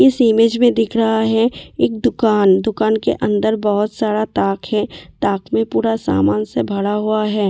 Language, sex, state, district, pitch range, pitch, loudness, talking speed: Hindi, female, Delhi, New Delhi, 200-225 Hz, 215 Hz, -16 LUFS, 190 wpm